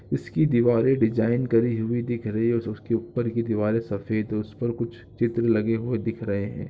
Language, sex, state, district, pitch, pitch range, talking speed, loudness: Hindi, male, Jharkhand, Jamtara, 115 Hz, 110-120 Hz, 195 wpm, -25 LUFS